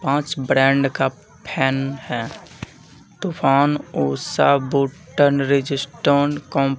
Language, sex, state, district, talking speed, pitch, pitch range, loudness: Hindi, male, Bihar, Katihar, 90 wpm, 140 Hz, 135-145 Hz, -20 LUFS